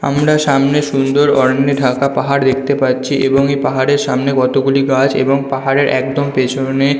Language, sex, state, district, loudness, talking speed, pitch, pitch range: Bengali, male, West Bengal, North 24 Parganas, -14 LUFS, 165 wpm, 135 Hz, 135-140 Hz